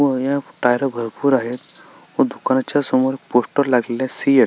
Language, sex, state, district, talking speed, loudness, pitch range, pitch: Marathi, male, Maharashtra, Sindhudurg, 150 wpm, -19 LUFS, 125-140 Hz, 130 Hz